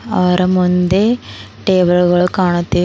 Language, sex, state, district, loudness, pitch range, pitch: Kannada, female, Karnataka, Bidar, -14 LUFS, 180-185 Hz, 180 Hz